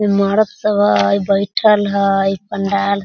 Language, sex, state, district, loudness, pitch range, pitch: Hindi, female, Bihar, Sitamarhi, -15 LUFS, 195-205 Hz, 200 Hz